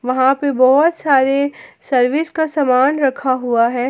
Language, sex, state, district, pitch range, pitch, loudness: Hindi, female, Jharkhand, Palamu, 255-285 Hz, 270 Hz, -15 LUFS